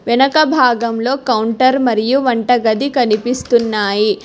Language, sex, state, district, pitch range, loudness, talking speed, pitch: Telugu, female, Telangana, Hyderabad, 225-260 Hz, -14 LUFS, 85 wpm, 245 Hz